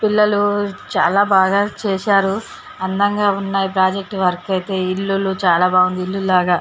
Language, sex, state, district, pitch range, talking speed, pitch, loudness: Telugu, female, Telangana, Karimnagar, 185-200 Hz, 125 wpm, 195 Hz, -17 LUFS